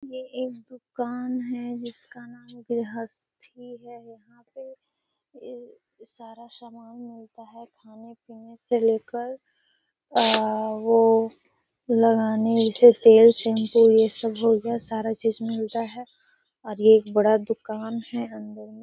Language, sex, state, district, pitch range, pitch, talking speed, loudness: Hindi, female, Bihar, Gaya, 225-245 Hz, 230 Hz, 135 wpm, -21 LUFS